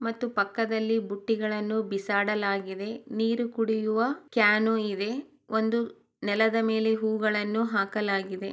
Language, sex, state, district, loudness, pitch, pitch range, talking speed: Kannada, female, Karnataka, Chamarajanagar, -27 LUFS, 220 Hz, 205-225 Hz, 90 wpm